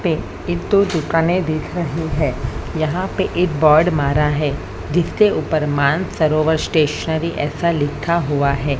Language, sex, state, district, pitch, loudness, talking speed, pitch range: Hindi, female, Maharashtra, Mumbai Suburban, 155 Hz, -18 LUFS, 130 wpm, 145-170 Hz